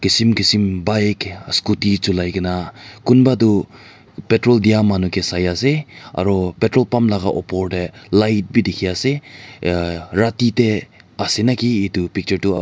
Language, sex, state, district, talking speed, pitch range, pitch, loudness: Nagamese, male, Nagaland, Dimapur, 150 wpm, 95-115 Hz, 105 Hz, -17 LUFS